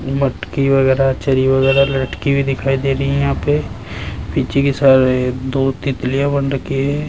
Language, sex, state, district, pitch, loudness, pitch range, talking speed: Hindi, male, Rajasthan, Jaipur, 135 Hz, -16 LUFS, 130-140 Hz, 170 wpm